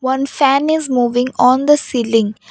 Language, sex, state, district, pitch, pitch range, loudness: English, female, Assam, Kamrup Metropolitan, 260 Hz, 245-280 Hz, -14 LUFS